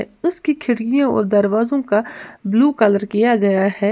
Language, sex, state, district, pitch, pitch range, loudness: Hindi, female, Uttar Pradesh, Lalitpur, 225 Hz, 205-280 Hz, -17 LUFS